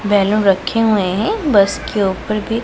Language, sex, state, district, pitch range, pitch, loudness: Hindi, female, Punjab, Pathankot, 195-215 Hz, 205 Hz, -16 LUFS